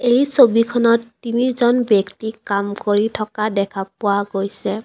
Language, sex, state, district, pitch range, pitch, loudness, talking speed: Assamese, female, Assam, Kamrup Metropolitan, 200-235 Hz, 215 Hz, -18 LUFS, 125 wpm